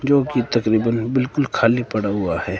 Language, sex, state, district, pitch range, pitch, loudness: Hindi, male, Himachal Pradesh, Shimla, 110-125 Hz, 115 Hz, -19 LUFS